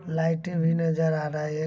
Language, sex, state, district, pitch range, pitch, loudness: Angika, male, Bihar, Begusarai, 155-165 Hz, 160 Hz, -26 LUFS